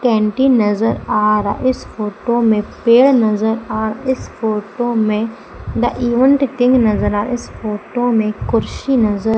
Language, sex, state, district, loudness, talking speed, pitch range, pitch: Hindi, female, Madhya Pradesh, Umaria, -16 LUFS, 165 wpm, 215-245 Hz, 225 Hz